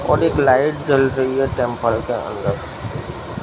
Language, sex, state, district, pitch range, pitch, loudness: Hindi, male, Gujarat, Gandhinagar, 120-135 Hz, 130 Hz, -19 LUFS